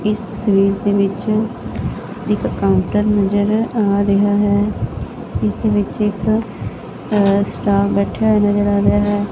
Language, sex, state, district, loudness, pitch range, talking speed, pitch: Punjabi, female, Punjab, Fazilka, -17 LUFS, 200-210 Hz, 130 wpm, 205 Hz